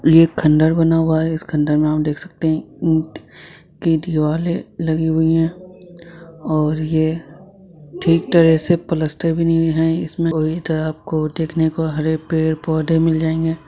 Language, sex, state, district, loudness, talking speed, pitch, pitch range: Hindi, male, Bihar, Madhepura, -18 LUFS, 160 wpm, 160 Hz, 155-165 Hz